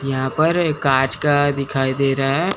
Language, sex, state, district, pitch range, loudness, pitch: Hindi, male, Chandigarh, Chandigarh, 135-150 Hz, -18 LUFS, 140 Hz